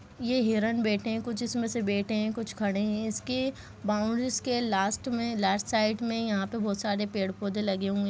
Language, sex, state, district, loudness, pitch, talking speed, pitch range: Hindi, female, Chhattisgarh, Kabirdham, -29 LUFS, 220 Hz, 215 wpm, 205-235 Hz